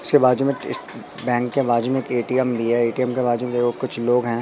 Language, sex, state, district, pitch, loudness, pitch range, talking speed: Hindi, male, Madhya Pradesh, Katni, 125 Hz, -20 LUFS, 120-130 Hz, 255 wpm